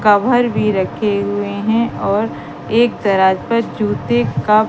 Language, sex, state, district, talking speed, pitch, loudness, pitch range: Hindi, female, Madhya Pradesh, Katni, 140 wpm, 205 Hz, -16 LUFS, 190-220 Hz